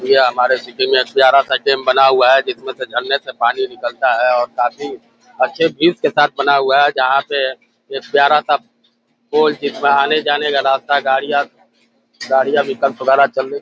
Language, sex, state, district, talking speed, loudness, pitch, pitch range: Hindi, male, Uttar Pradesh, Deoria, 160 wpm, -15 LUFS, 140 Hz, 135-155 Hz